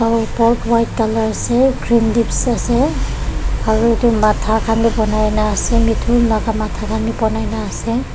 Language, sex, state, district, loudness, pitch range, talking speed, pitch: Nagamese, female, Nagaland, Dimapur, -16 LUFS, 220-230 Hz, 160 wpm, 225 Hz